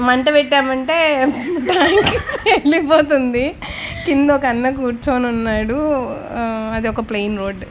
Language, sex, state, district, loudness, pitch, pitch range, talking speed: Telugu, female, Andhra Pradesh, Annamaya, -16 LUFS, 270 Hz, 240-300 Hz, 125 wpm